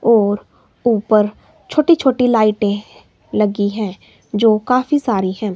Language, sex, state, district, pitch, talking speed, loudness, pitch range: Hindi, female, Himachal Pradesh, Shimla, 215 Hz, 120 wpm, -16 LUFS, 205-245 Hz